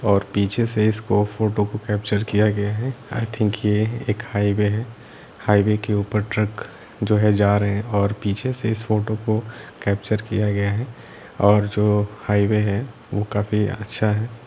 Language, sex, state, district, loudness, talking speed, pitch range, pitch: Hindi, male, Jharkhand, Sahebganj, -21 LUFS, 180 wpm, 105-110 Hz, 105 Hz